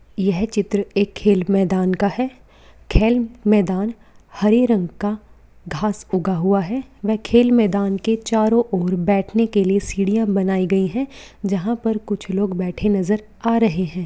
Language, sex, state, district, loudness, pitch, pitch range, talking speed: Hindi, female, Jharkhand, Sahebganj, -19 LUFS, 205 Hz, 195-225 Hz, 160 wpm